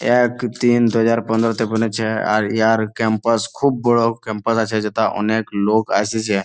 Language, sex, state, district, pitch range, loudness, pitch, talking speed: Bengali, male, West Bengal, Malda, 110-115 Hz, -18 LUFS, 115 Hz, 175 wpm